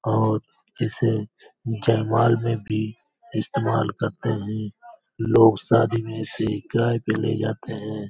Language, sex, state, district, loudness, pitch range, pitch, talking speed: Hindi, male, Uttar Pradesh, Hamirpur, -23 LUFS, 110-115 Hz, 110 Hz, 135 wpm